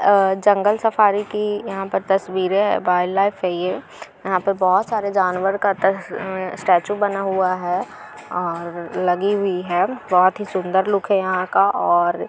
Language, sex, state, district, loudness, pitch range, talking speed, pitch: Hindi, female, Bihar, Gaya, -19 LUFS, 185-200 Hz, 165 wpm, 190 Hz